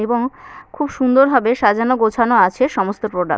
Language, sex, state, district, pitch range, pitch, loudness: Bengali, female, West Bengal, Purulia, 220-260 Hz, 240 Hz, -16 LUFS